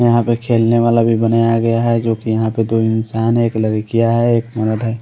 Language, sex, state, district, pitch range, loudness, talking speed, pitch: Hindi, male, Haryana, Rohtak, 110-115 Hz, -15 LUFS, 240 wpm, 115 Hz